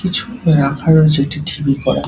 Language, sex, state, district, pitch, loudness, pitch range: Bengali, male, West Bengal, Dakshin Dinajpur, 155 Hz, -14 LUFS, 140-170 Hz